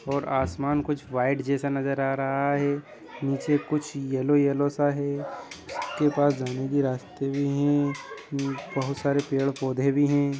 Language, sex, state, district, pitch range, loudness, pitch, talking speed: Hindi, male, Chhattisgarh, Raigarh, 135-145 Hz, -26 LUFS, 140 Hz, 155 wpm